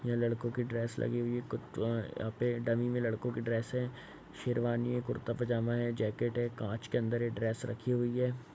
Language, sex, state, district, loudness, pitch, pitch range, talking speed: Hindi, male, Bihar, East Champaran, -35 LUFS, 120 Hz, 115-120 Hz, 225 wpm